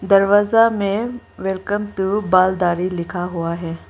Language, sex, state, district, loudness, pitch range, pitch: Hindi, female, Arunachal Pradesh, Lower Dibang Valley, -19 LUFS, 175-205 Hz, 190 Hz